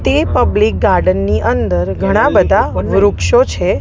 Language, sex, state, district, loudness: Gujarati, female, Gujarat, Gandhinagar, -13 LUFS